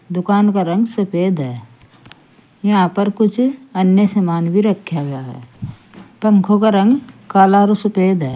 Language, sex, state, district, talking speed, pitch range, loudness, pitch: Hindi, female, Uttar Pradesh, Saharanpur, 150 wpm, 170-210 Hz, -15 LUFS, 195 Hz